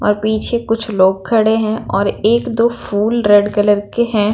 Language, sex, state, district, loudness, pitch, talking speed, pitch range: Hindi, female, Bihar, Patna, -15 LUFS, 215 Hz, 195 wpm, 205-230 Hz